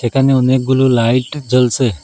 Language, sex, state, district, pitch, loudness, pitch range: Bengali, male, Assam, Hailakandi, 130 Hz, -13 LUFS, 120-130 Hz